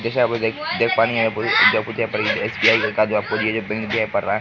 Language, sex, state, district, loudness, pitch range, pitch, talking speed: Hindi, male, Bihar, Araria, -19 LUFS, 110-115 Hz, 110 Hz, 340 wpm